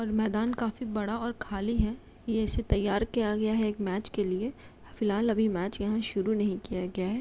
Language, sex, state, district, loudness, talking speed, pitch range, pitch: Hindi, female, Uttar Pradesh, Jalaun, -30 LUFS, 215 wpm, 205-225 Hz, 215 Hz